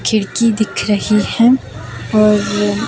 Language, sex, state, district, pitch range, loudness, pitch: Hindi, female, Himachal Pradesh, Shimla, 205-230 Hz, -14 LUFS, 215 Hz